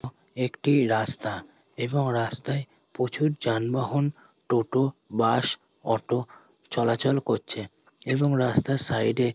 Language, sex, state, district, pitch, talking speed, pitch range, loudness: Bengali, male, West Bengal, Jalpaiguri, 125 Hz, 95 wpm, 115-140 Hz, -26 LUFS